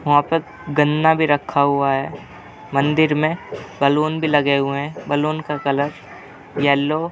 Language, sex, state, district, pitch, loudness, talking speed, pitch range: Hindi, male, Uttar Pradesh, Jalaun, 145 Hz, -19 LUFS, 160 wpm, 140-155 Hz